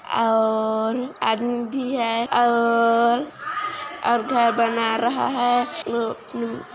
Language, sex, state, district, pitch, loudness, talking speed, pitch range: Hindi, female, Chhattisgarh, Kabirdham, 235 Hz, -22 LUFS, 90 wpm, 230-245 Hz